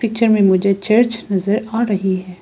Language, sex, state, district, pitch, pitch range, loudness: Hindi, female, Arunachal Pradesh, Lower Dibang Valley, 205 Hz, 190-230 Hz, -16 LUFS